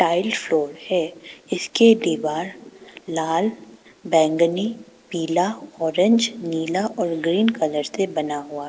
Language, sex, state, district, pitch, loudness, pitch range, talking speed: Hindi, female, Arunachal Pradesh, Papum Pare, 170 Hz, -21 LUFS, 160-205 Hz, 105 wpm